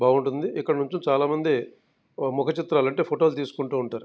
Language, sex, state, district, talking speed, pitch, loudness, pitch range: Telugu, male, Andhra Pradesh, Krishna, 180 wpm, 140 Hz, -25 LUFS, 130-150 Hz